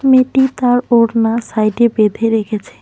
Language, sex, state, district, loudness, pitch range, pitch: Bengali, female, West Bengal, Cooch Behar, -14 LUFS, 220-245 Hz, 230 Hz